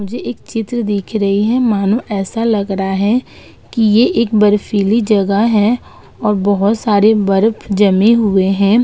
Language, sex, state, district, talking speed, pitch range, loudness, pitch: Hindi, female, Uttar Pradesh, Budaun, 165 wpm, 200-225 Hz, -14 LUFS, 210 Hz